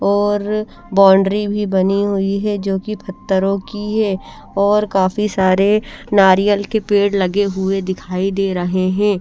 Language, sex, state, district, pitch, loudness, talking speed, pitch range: Hindi, female, Chandigarh, Chandigarh, 200 Hz, -16 LUFS, 145 wpm, 190-205 Hz